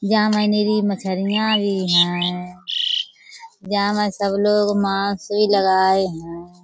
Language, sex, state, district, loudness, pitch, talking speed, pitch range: Hindi, female, Uttar Pradesh, Budaun, -19 LUFS, 200 Hz, 110 wpm, 190-210 Hz